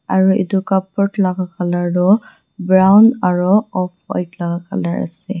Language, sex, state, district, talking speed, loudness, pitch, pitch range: Nagamese, female, Nagaland, Dimapur, 120 wpm, -16 LUFS, 185 Hz, 175-195 Hz